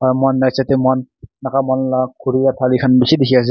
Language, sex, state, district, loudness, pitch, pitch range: Nagamese, male, Nagaland, Kohima, -15 LUFS, 130 Hz, 130-135 Hz